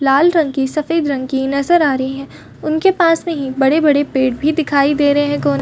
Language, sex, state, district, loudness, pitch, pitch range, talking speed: Hindi, female, Chhattisgarh, Bastar, -15 LUFS, 285 Hz, 270-320 Hz, 255 wpm